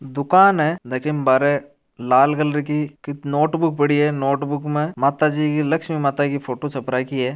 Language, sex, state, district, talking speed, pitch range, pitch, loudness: Marwari, male, Rajasthan, Churu, 195 wpm, 140-150 Hz, 145 Hz, -19 LUFS